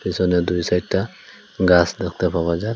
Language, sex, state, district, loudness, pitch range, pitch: Bengali, male, Assam, Hailakandi, -20 LUFS, 85-90 Hz, 90 Hz